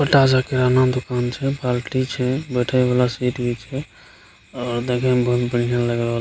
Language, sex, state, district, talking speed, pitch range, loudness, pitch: Maithili, male, Bihar, Begusarai, 185 wpm, 120-130 Hz, -20 LUFS, 125 Hz